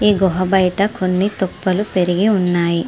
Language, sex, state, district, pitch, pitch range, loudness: Telugu, female, Andhra Pradesh, Srikakulam, 190 Hz, 180-200 Hz, -17 LUFS